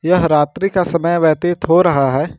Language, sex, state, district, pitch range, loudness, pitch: Hindi, male, Jharkhand, Ranchi, 155-175 Hz, -15 LUFS, 170 Hz